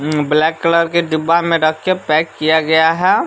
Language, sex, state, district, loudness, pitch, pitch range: Hindi, male, Bihar, West Champaran, -14 LUFS, 160 Hz, 155-170 Hz